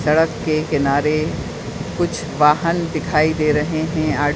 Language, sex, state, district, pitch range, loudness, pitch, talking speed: Hindi, female, Uttar Pradesh, Etah, 150-160 Hz, -19 LUFS, 155 Hz, 150 wpm